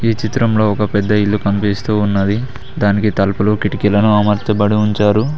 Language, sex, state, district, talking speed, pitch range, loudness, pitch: Telugu, male, Telangana, Mahabubabad, 135 wpm, 105-110 Hz, -15 LUFS, 105 Hz